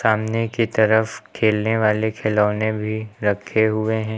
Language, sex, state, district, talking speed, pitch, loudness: Hindi, male, Uttar Pradesh, Lucknow, 145 wpm, 110 Hz, -20 LUFS